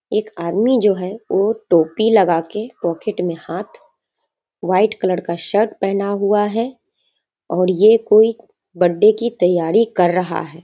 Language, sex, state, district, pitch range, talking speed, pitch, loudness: Hindi, female, Bihar, Sitamarhi, 175-220 Hz, 150 wpm, 200 Hz, -17 LUFS